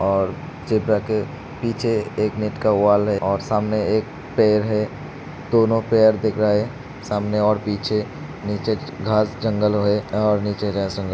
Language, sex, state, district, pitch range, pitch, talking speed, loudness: Hindi, male, Uttar Pradesh, Hamirpur, 105-110 Hz, 105 Hz, 155 wpm, -21 LUFS